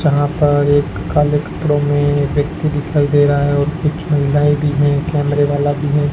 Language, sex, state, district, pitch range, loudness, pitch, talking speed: Hindi, male, Rajasthan, Bikaner, 145-150 Hz, -15 LUFS, 145 Hz, 195 wpm